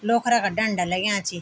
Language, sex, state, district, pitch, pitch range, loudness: Garhwali, female, Uttarakhand, Tehri Garhwal, 205 Hz, 185-230 Hz, -22 LUFS